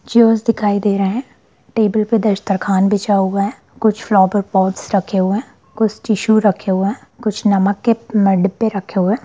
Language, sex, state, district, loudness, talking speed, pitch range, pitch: Hindi, female, Bihar, Sitamarhi, -16 LUFS, 200 wpm, 195-220 Hz, 205 Hz